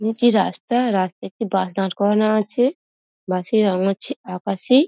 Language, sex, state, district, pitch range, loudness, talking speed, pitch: Bengali, female, West Bengal, Dakshin Dinajpur, 190-235 Hz, -20 LUFS, 185 wpm, 210 Hz